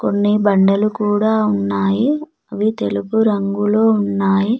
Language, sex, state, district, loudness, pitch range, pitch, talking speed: Telugu, female, Telangana, Mahabubabad, -16 LUFS, 195-220 Hz, 205 Hz, 105 wpm